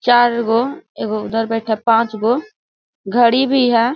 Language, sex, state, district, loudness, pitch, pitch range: Hindi, female, Bihar, Bhagalpur, -16 LUFS, 235 Hz, 225-250 Hz